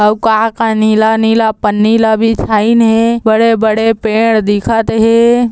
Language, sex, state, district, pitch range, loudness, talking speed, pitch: Chhattisgarhi, female, Chhattisgarh, Balrampur, 220-225 Hz, -10 LUFS, 140 wpm, 225 Hz